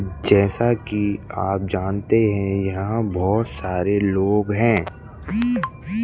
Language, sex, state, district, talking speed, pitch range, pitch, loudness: Hindi, male, Madhya Pradesh, Bhopal, 110 wpm, 95-115 Hz, 100 Hz, -21 LUFS